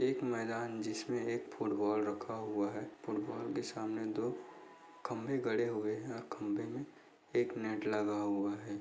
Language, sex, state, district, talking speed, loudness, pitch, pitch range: Hindi, male, Maharashtra, Dhule, 165 wpm, -38 LUFS, 110 Hz, 105-115 Hz